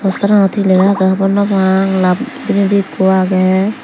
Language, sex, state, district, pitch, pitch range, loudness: Chakma, female, Tripura, Dhalai, 195 Hz, 190-200 Hz, -12 LUFS